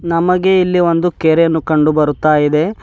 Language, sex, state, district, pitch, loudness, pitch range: Kannada, female, Karnataka, Bidar, 165 Hz, -13 LUFS, 155-180 Hz